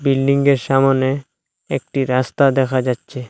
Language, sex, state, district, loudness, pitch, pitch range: Bengali, male, Assam, Hailakandi, -17 LUFS, 135 Hz, 130-140 Hz